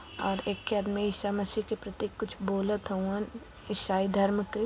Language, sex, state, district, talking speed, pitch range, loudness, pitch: Bhojpuri, female, Uttar Pradesh, Varanasi, 180 wpm, 195-210 Hz, -31 LUFS, 205 Hz